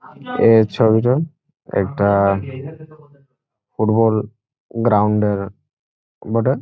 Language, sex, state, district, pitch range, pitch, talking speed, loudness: Bengali, male, West Bengal, Jhargram, 105-135 Hz, 115 Hz, 70 wpm, -17 LUFS